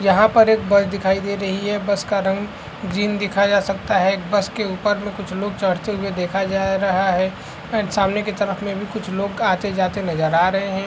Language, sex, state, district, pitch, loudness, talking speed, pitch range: Hindi, male, Chhattisgarh, Bastar, 200 Hz, -20 LUFS, 230 wpm, 190-205 Hz